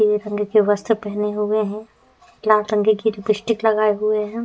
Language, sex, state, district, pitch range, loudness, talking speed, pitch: Hindi, female, Uttar Pradesh, Etah, 210-215 Hz, -19 LUFS, 190 wpm, 215 Hz